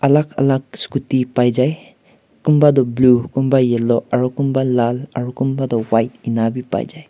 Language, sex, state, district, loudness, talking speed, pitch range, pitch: Nagamese, male, Nagaland, Kohima, -17 LUFS, 185 wpm, 120-135 Hz, 125 Hz